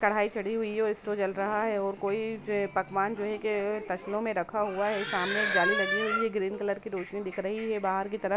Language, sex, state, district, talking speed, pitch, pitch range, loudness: Hindi, female, Jharkhand, Jamtara, 250 wpm, 205 Hz, 195-215 Hz, -30 LUFS